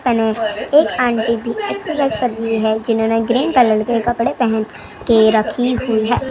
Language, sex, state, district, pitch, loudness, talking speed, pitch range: Hindi, female, Maharashtra, Gondia, 230 Hz, -16 LUFS, 150 wpm, 220-245 Hz